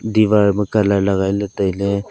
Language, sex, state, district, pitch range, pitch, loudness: Wancho, male, Arunachal Pradesh, Longding, 100-105 Hz, 100 Hz, -17 LUFS